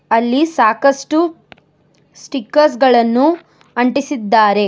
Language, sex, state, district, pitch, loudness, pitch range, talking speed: Kannada, female, Karnataka, Bangalore, 250 Hz, -14 LUFS, 210-285 Hz, 65 wpm